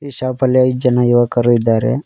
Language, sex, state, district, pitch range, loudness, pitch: Kannada, male, Karnataka, Koppal, 120-130 Hz, -14 LUFS, 125 Hz